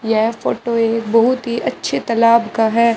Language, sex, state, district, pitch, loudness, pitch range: Hindi, female, Rajasthan, Bikaner, 230 Hz, -16 LUFS, 225-235 Hz